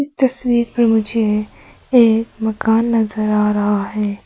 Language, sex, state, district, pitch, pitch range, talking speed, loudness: Hindi, female, Arunachal Pradesh, Papum Pare, 225 Hz, 210-235 Hz, 140 wpm, -16 LUFS